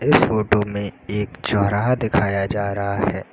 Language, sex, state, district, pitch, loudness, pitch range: Hindi, male, Uttar Pradesh, Lucknow, 100 Hz, -21 LUFS, 100-105 Hz